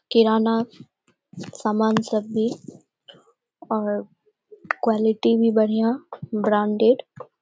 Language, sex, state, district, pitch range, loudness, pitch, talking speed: Maithili, female, Bihar, Saharsa, 220-230 Hz, -22 LUFS, 220 Hz, 80 wpm